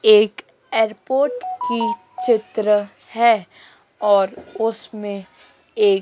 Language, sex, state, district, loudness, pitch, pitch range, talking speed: Hindi, female, Madhya Pradesh, Dhar, -20 LUFS, 230 Hz, 210-250 Hz, 80 wpm